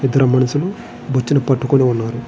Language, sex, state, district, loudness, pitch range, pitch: Telugu, male, Andhra Pradesh, Srikakulam, -16 LUFS, 125-135 Hz, 130 Hz